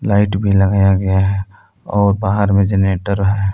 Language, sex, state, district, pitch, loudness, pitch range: Hindi, male, Jharkhand, Palamu, 100 Hz, -15 LUFS, 95-100 Hz